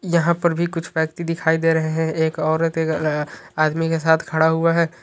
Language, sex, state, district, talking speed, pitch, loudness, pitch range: Hindi, male, Uttar Pradesh, Ghazipur, 205 wpm, 160 Hz, -20 LUFS, 160-165 Hz